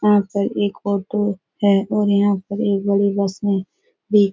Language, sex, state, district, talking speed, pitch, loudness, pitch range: Hindi, female, Bihar, Supaul, 195 wpm, 200 Hz, -19 LUFS, 200-210 Hz